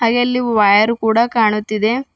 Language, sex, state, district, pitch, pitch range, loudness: Kannada, female, Karnataka, Bidar, 225 Hz, 215-240 Hz, -15 LUFS